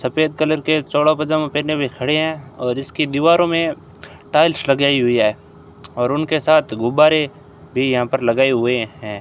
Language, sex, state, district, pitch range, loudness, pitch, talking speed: Hindi, male, Rajasthan, Bikaner, 125-155 Hz, -17 LUFS, 140 Hz, 175 wpm